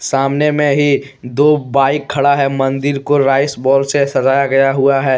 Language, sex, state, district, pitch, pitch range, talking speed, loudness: Hindi, male, Jharkhand, Deoghar, 140 Hz, 135-145 Hz, 185 wpm, -13 LUFS